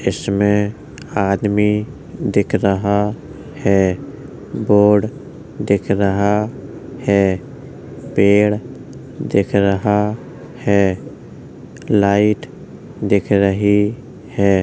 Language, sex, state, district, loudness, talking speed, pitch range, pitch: Hindi, male, Uttar Pradesh, Jalaun, -17 LUFS, 70 wpm, 100-105 Hz, 105 Hz